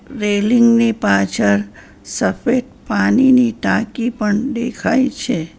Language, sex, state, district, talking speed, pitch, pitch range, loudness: Gujarati, female, Gujarat, Valsad, 95 wpm, 230 Hz, 205-245 Hz, -16 LUFS